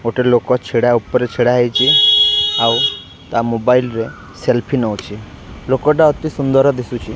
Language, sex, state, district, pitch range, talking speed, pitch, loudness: Odia, male, Odisha, Khordha, 115-135 Hz, 135 wpm, 120 Hz, -14 LUFS